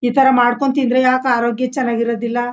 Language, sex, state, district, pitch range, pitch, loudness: Kannada, female, Karnataka, Mysore, 240-260 Hz, 250 Hz, -16 LUFS